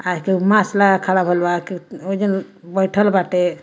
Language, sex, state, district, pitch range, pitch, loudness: Bhojpuri, female, Bihar, Muzaffarpur, 180-195 Hz, 190 Hz, -18 LUFS